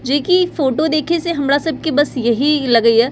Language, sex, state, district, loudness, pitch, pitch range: Bajjika, female, Bihar, Vaishali, -15 LUFS, 290 Hz, 260-320 Hz